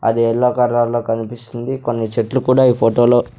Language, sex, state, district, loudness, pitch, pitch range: Telugu, male, Andhra Pradesh, Sri Satya Sai, -16 LUFS, 120 Hz, 115-125 Hz